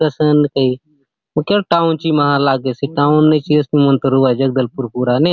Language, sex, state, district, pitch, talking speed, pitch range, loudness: Halbi, male, Chhattisgarh, Bastar, 145 Hz, 205 wpm, 135-155 Hz, -15 LUFS